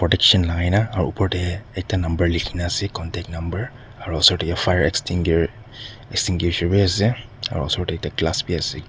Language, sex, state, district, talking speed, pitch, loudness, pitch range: Nagamese, male, Nagaland, Dimapur, 170 wpm, 90 Hz, -21 LUFS, 85-105 Hz